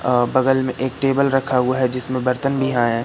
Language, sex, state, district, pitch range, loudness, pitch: Hindi, male, Madhya Pradesh, Katni, 125-135 Hz, -19 LUFS, 130 Hz